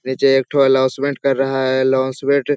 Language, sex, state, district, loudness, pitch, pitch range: Hindi, male, Bihar, Jahanabad, -16 LUFS, 135 Hz, 130-140 Hz